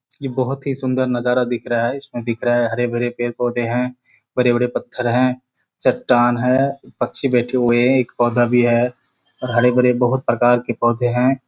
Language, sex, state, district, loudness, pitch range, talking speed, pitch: Hindi, male, Bihar, Kishanganj, -18 LUFS, 120-125 Hz, 195 wpm, 125 Hz